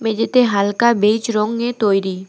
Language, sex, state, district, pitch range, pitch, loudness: Bengali, female, West Bengal, Alipurduar, 205-235 Hz, 220 Hz, -16 LUFS